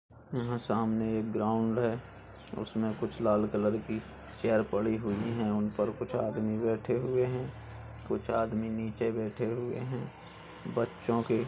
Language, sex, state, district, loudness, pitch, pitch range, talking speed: Hindi, male, Uttar Pradesh, Gorakhpur, -32 LUFS, 110 Hz, 110-115 Hz, 170 wpm